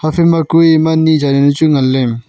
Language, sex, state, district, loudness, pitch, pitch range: Wancho, male, Arunachal Pradesh, Longding, -11 LUFS, 155 Hz, 140-160 Hz